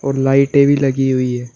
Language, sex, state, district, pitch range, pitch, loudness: Hindi, male, Uttar Pradesh, Shamli, 130-140 Hz, 135 Hz, -14 LUFS